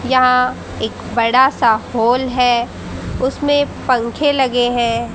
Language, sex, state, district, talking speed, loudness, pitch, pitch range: Hindi, female, Haryana, Rohtak, 115 wpm, -16 LUFS, 250 Hz, 235-260 Hz